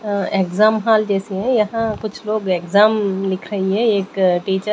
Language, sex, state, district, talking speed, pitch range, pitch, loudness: Hindi, female, Maharashtra, Gondia, 190 wpm, 190-215 Hz, 200 Hz, -18 LUFS